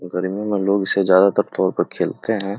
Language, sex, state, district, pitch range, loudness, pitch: Hindi, male, Bihar, Begusarai, 95-100 Hz, -19 LUFS, 100 Hz